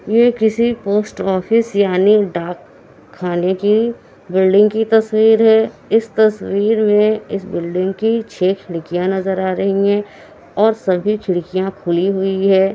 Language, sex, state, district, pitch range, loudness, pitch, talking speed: Hindi, female, Bihar, Kishanganj, 190-220 Hz, -16 LUFS, 200 Hz, 140 wpm